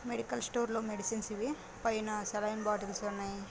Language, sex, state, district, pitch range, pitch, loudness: Telugu, female, Andhra Pradesh, Guntur, 210-230 Hz, 215 Hz, -36 LUFS